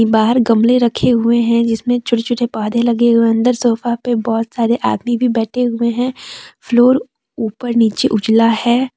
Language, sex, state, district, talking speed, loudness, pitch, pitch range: Hindi, female, Jharkhand, Deoghar, 180 wpm, -15 LUFS, 235 Hz, 230-245 Hz